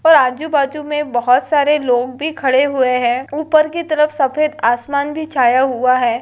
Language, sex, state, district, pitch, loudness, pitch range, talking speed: Maithili, female, Bihar, Lakhisarai, 280 Hz, -15 LUFS, 250-300 Hz, 185 wpm